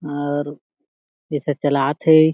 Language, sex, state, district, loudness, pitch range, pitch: Chhattisgarhi, male, Chhattisgarh, Jashpur, -20 LUFS, 145-150 Hz, 145 Hz